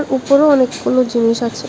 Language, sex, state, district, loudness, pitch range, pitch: Bengali, female, Tripura, West Tripura, -14 LUFS, 235-280 Hz, 255 Hz